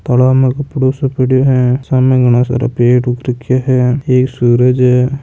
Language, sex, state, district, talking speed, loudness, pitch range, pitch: Marwari, male, Rajasthan, Nagaur, 185 wpm, -12 LUFS, 125-130 Hz, 125 Hz